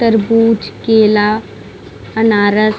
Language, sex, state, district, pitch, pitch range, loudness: Hindi, female, Bihar, Vaishali, 220 Hz, 210-225 Hz, -12 LUFS